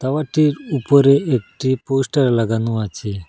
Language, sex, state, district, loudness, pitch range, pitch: Bengali, male, Assam, Hailakandi, -17 LUFS, 115-140 Hz, 130 Hz